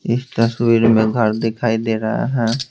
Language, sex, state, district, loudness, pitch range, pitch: Hindi, male, Bihar, Patna, -17 LUFS, 110-120 Hz, 115 Hz